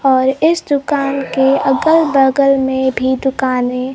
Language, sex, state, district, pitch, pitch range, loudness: Hindi, female, Bihar, Kaimur, 270 Hz, 260-280 Hz, -14 LUFS